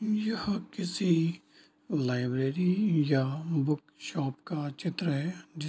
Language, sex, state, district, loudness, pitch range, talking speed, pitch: Hindi, male, Bihar, Darbhanga, -31 LUFS, 145-190 Hz, 115 wpm, 165 Hz